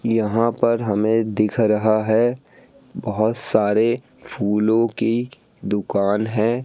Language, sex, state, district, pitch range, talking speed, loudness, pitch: Hindi, male, Madhya Pradesh, Katni, 105-115 Hz, 110 wpm, -20 LUFS, 110 Hz